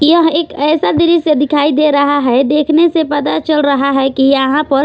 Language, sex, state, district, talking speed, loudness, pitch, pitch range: Hindi, female, Punjab, Pathankot, 210 wpm, -12 LUFS, 295 Hz, 275-315 Hz